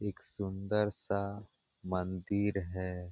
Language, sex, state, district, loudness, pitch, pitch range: Hindi, male, Bihar, Supaul, -36 LUFS, 100 Hz, 90-100 Hz